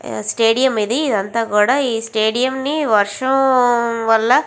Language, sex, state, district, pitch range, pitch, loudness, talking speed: Telugu, female, Andhra Pradesh, Visakhapatnam, 215-260 Hz, 230 Hz, -16 LUFS, 135 wpm